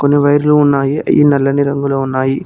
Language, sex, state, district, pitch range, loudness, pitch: Telugu, male, Telangana, Mahabubabad, 135-145 Hz, -12 LUFS, 140 Hz